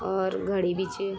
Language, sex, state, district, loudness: Garhwali, female, Uttarakhand, Tehri Garhwal, -28 LUFS